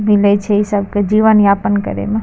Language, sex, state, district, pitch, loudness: Maithili, female, Bihar, Madhepura, 205 Hz, -13 LUFS